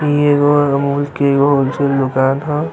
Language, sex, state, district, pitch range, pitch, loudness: Bhojpuri, male, Uttar Pradesh, Ghazipur, 140-145 Hz, 140 Hz, -14 LUFS